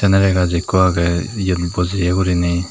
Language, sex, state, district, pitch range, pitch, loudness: Chakma, male, Tripura, Dhalai, 85-95 Hz, 90 Hz, -17 LUFS